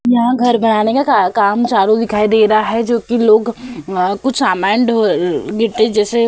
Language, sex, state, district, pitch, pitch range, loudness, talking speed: Hindi, female, Uttar Pradesh, Hamirpur, 230 Hz, 215-245 Hz, -14 LUFS, 180 wpm